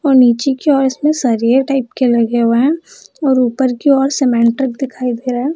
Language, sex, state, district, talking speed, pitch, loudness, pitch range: Hindi, female, Bihar, Jahanabad, 225 wpm, 260 Hz, -14 LUFS, 245-275 Hz